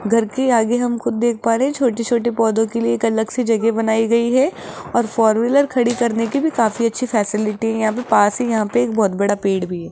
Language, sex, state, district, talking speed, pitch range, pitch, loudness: Hindi, female, Rajasthan, Jaipur, 255 wpm, 220-240 Hz, 230 Hz, -18 LUFS